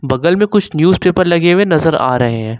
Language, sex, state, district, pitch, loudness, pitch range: Hindi, male, Jharkhand, Ranchi, 170 Hz, -12 LUFS, 130-185 Hz